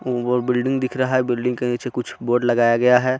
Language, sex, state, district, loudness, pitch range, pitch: Hindi, male, Jharkhand, Garhwa, -20 LUFS, 120-130 Hz, 125 Hz